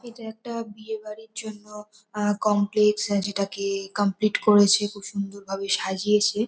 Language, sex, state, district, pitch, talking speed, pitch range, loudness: Bengali, female, West Bengal, North 24 Parganas, 210 Hz, 130 wpm, 200-215 Hz, -24 LUFS